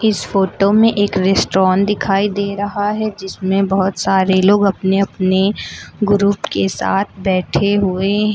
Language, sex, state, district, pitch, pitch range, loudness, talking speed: Hindi, female, Uttar Pradesh, Lucknow, 195 Hz, 190-205 Hz, -16 LUFS, 150 wpm